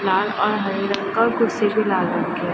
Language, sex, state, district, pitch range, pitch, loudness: Hindi, female, Uttar Pradesh, Ghazipur, 190-210 Hz, 195 Hz, -20 LUFS